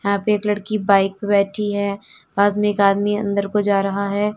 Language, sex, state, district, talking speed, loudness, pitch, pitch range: Hindi, female, Uttar Pradesh, Lalitpur, 235 wpm, -19 LUFS, 205 Hz, 200-210 Hz